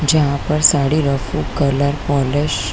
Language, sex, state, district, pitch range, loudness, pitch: Hindi, female, Chhattisgarh, Korba, 140-150 Hz, -16 LUFS, 145 Hz